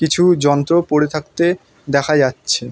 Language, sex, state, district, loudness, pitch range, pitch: Bengali, male, West Bengal, North 24 Parganas, -16 LUFS, 140-170 Hz, 150 Hz